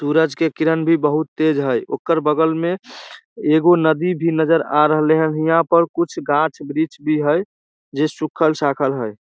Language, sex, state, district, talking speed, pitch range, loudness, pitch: Maithili, male, Bihar, Samastipur, 170 wpm, 150-165 Hz, -18 LUFS, 155 Hz